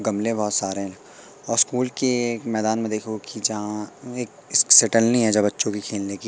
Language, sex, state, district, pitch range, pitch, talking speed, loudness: Hindi, male, Madhya Pradesh, Katni, 105-115 Hz, 110 Hz, 180 wpm, -20 LUFS